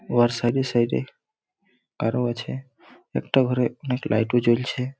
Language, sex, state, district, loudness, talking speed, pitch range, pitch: Bengali, male, West Bengal, Malda, -24 LUFS, 120 wpm, 120-130 Hz, 125 Hz